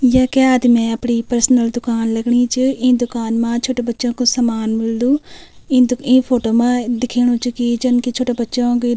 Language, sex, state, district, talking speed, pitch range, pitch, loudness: Garhwali, female, Uttarakhand, Tehri Garhwal, 195 wpm, 235-250 Hz, 245 Hz, -16 LUFS